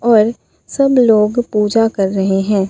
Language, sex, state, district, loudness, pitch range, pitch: Hindi, female, Bihar, Katihar, -14 LUFS, 200-235 Hz, 215 Hz